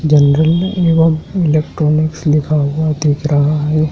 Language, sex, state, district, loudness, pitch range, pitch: Hindi, male, Madhya Pradesh, Dhar, -14 LUFS, 150-160 Hz, 155 Hz